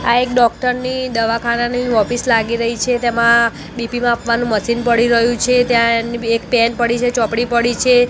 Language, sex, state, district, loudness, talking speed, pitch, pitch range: Gujarati, female, Gujarat, Gandhinagar, -15 LUFS, 190 wpm, 235 Hz, 235-245 Hz